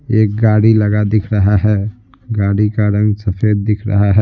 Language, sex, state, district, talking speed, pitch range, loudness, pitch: Hindi, male, Bihar, Patna, 170 wpm, 105-110 Hz, -14 LUFS, 105 Hz